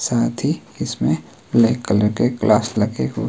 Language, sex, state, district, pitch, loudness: Hindi, male, Himachal Pradesh, Shimla, 80 Hz, -19 LUFS